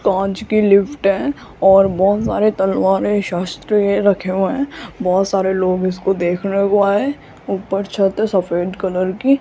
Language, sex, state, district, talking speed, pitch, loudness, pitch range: Hindi, female, Rajasthan, Jaipur, 180 wpm, 195 Hz, -17 LUFS, 190-205 Hz